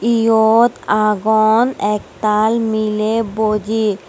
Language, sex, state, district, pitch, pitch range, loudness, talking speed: Chakma, female, Tripura, West Tripura, 220 Hz, 210-225 Hz, -15 LUFS, 75 wpm